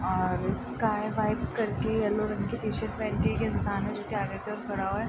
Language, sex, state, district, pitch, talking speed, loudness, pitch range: Hindi, female, Bihar, Araria, 210 Hz, 250 wpm, -30 LUFS, 205-215 Hz